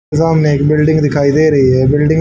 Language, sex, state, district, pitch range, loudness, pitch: Hindi, male, Haryana, Rohtak, 145-155 Hz, -11 LUFS, 150 Hz